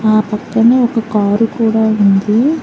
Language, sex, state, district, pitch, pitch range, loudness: Telugu, female, Telangana, Hyderabad, 220 Hz, 210-230 Hz, -12 LUFS